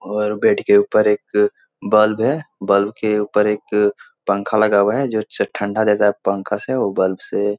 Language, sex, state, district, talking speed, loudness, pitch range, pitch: Hindi, male, Bihar, Jahanabad, 200 wpm, -18 LUFS, 100-135 Hz, 105 Hz